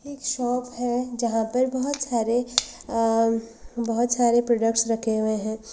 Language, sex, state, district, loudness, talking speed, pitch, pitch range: Hindi, female, Uttarakhand, Uttarkashi, -24 LUFS, 145 wpm, 235 Hz, 225-250 Hz